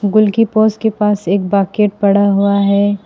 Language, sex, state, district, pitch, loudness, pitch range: Hindi, female, Assam, Sonitpur, 205 Hz, -13 LUFS, 200-215 Hz